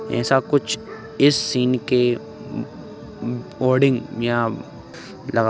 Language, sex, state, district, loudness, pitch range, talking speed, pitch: Hindi, male, Uttar Pradesh, Ghazipur, -21 LUFS, 120-135 Hz, 100 wpm, 125 Hz